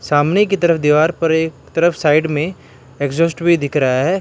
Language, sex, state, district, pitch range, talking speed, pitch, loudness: Hindi, male, Karnataka, Bangalore, 145-170 Hz, 200 wpm, 160 Hz, -16 LUFS